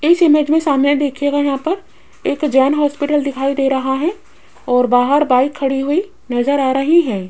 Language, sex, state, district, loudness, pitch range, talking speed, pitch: Hindi, female, Rajasthan, Jaipur, -15 LUFS, 265-300 Hz, 190 wpm, 285 Hz